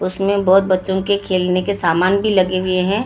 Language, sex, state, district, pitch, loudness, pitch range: Hindi, female, Maharashtra, Gondia, 190 Hz, -16 LUFS, 185-200 Hz